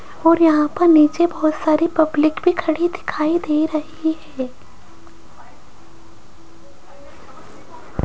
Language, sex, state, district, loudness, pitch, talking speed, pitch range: Hindi, female, Rajasthan, Jaipur, -17 LUFS, 315 Hz, 95 wpm, 305-335 Hz